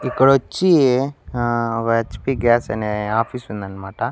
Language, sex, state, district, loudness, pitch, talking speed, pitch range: Telugu, male, Andhra Pradesh, Annamaya, -19 LUFS, 120 Hz, 130 wpm, 110-130 Hz